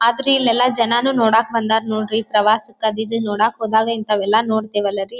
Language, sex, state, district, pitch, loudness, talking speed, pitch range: Kannada, female, Karnataka, Dharwad, 220 Hz, -16 LUFS, 160 wpm, 215-230 Hz